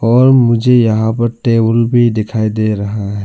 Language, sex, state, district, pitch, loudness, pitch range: Hindi, male, Arunachal Pradesh, Lower Dibang Valley, 115 Hz, -12 LUFS, 110-120 Hz